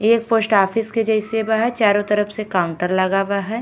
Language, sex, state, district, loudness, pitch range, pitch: Bhojpuri, female, Uttar Pradesh, Ghazipur, -18 LUFS, 200-225 Hz, 215 Hz